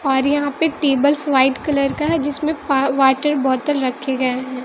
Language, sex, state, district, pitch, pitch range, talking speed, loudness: Hindi, female, Bihar, West Champaran, 275 Hz, 265-290 Hz, 195 wpm, -18 LUFS